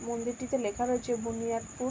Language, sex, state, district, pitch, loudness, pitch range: Bengali, female, West Bengal, Dakshin Dinajpur, 240 Hz, -32 LUFS, 230-250 Hz